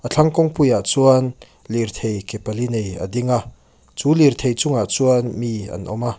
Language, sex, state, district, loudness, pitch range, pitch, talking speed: Mizo, male, Mizoram, Aizawl, -19 LUFS, 110-130 Hz, 120 Hz, 195 wpm